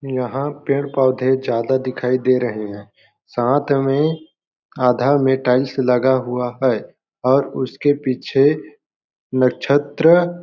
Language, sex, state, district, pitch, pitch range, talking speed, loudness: Hindi, male, Chhattisgarh, Balrampur, 130 Hz, 125-140 Hz, 120 wpm, -18 LUFS